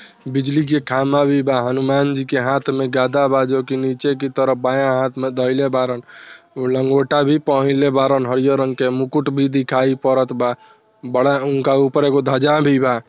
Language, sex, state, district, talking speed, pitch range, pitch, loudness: Bhojpuri, male, Bihar, Saran, 180 wpm, 130-140 Hz, 135 Hz, -17 LUFS